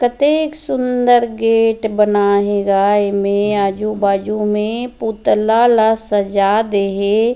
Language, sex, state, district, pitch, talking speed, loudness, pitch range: Chhattisgarhi, female, Chhattisgarh, Rajnandgaon, 215 Hz, 130 wpm, -15 LUFS, 200-230 Hz